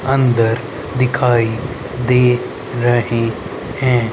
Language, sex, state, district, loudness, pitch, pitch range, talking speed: Hindi, male, Haryana, Rohtak, -17 LUFS, 125 Hz, 115-125 Hz, 70 wpm